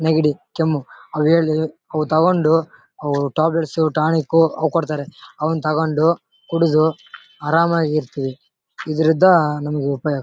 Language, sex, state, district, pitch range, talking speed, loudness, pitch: Kannada, male, Karnataka, Bellary, 150-165 Hz, 105 wpm, -18 LUFS, 155 Hz